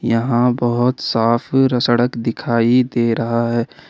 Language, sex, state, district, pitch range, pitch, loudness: Hindi, male, Jharkhand, Ranchi, 115-125 Hz, 120 Hz, -17 LUFS